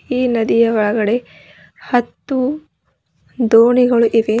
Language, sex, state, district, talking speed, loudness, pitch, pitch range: Kannada, female, Karnataka, Bidar, 80 wpm, -15 LUFS, 235 Hz, 225-250 Hz